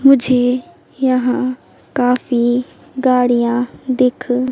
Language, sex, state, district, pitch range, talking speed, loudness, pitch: Hindi, female, Madhya Pradesh, Katni, 245-260 Hz, 65 wpm, -16 LUFS, 255 Hz